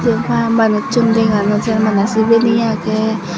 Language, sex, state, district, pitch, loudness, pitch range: Chakma, female, Tripura, Dhalai, 220 Hz, -14 LUFS, 215-225 Hz